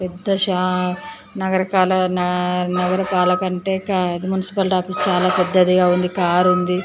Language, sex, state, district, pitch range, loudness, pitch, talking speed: Telugu, female, Andhra Pradesh, Chittoor, 180-190 Hz, -18 LUFS, 185 Hz, 80 wpm